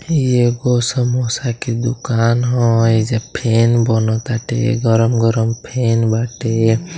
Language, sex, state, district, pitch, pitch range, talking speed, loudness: Bhojpuri, male, Uttar Pradesh, Deoria, 115 Hz, 115-125 Hz, 120 wpm, -16 LUFS